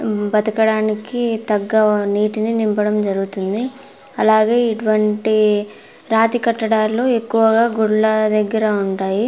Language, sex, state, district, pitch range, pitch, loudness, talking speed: Telugu, female, Andhra Pradesh, Anantapur, 210-225 Hz, 215 Hz, -17 LUFS, 85 wpm